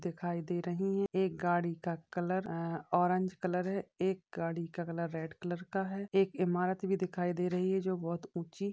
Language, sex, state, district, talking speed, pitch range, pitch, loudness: Hindi, female, Uttar Pradesh, Jyotiba Phule Nagar, 215 wpm, 170-190 Hz, 180 Hz, -35 LUFS